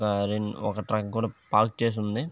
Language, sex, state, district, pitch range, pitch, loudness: Telugu, male, Andhra Pradesh, Visakhapatnam, 105-115 Hz, 105 Hz, -27 LUFS